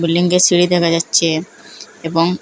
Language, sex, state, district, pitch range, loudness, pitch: Bengali, female, Assam, Hailakandi, 165-180 Hz, -14 LUFS, 175 Hz